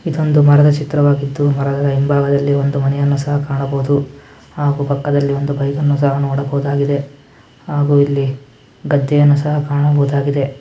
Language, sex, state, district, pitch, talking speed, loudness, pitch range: Kannada, male, Karnataka, Mysore, 140 Hz, 120 wpm, -15 LUFS, 140-145 Hz